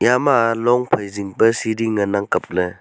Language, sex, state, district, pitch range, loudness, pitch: Wancho, male, Arunachal Pradesh, Longding, 100-120 Hz, -18 LUFS, 115 Hz